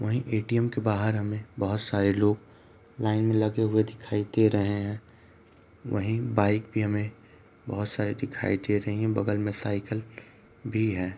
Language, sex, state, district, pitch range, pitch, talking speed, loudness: Hindi, male, Uttar Pradesh, Varanasi, 105-110 Hz, 110 Hz, 180 wpm, -28 LUFS